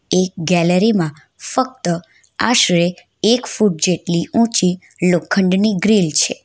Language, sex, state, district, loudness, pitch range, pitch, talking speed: Gujarati, female, Gujarat, Valsad, -16 LUFS, 170-220 Hz, 185 Hz, 100 wpm